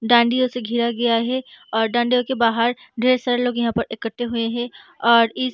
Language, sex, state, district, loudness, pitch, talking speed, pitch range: Hindi, female, Bihar, Gaya, -20 LUFS, 240 Hz, 215 wpm, 230-245 Hz